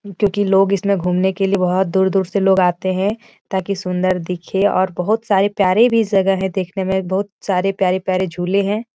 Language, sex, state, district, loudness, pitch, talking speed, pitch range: Hindi, female, Bihar, Jahanabad, -17 LUFS, 195 Hz, 205 wpm, 185-200 Hz